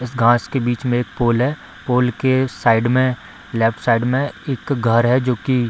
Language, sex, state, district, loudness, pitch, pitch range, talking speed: Hindi, female, Bihar, Samastipur, -18 LUFS, 125 Hz, 120-130 Hz, 220 wpm